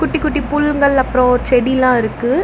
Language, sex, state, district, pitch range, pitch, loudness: Tamil, female, Tamil Nadu, Namakkal, 250-295 Hz, 260 Hz, -14 LUFS